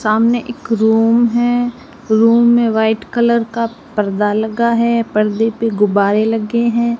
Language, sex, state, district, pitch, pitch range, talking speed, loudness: Hindi, female, Rajasthan, Jaisalmer, 230 Hz, 220-235 Hz, 145 wpm, -14 LUFS